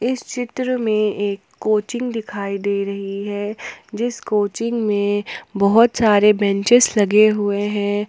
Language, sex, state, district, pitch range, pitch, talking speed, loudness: Hindi, female, Jharkhand, Ranchi, 205-230 Hz, 210 Hz, 135 wpm, -18 LUFS